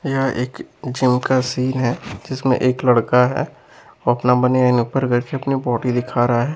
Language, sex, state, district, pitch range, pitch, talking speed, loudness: Hindi, male, Bihar, West Champaran, 125-130 Hz, 125 Hz, 185 wpm, -19 LUFS